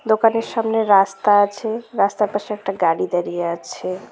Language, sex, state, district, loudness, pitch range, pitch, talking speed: Bengali, female, West Bengal, Cooch Behar, -19 LUFS, 185-220 Hz, 205 Hz, 145 wpm